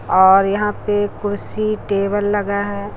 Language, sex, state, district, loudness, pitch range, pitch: Hindi, female, Chhattisgarh, Raipur, -17 LUFS, 200-205 Hz, 205 Hz